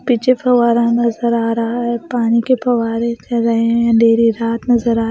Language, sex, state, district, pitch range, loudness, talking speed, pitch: Hindi, female, Bihar, Kaimur, 230-240 Hz, -15 LUFS, 200 wpm, 235 Hz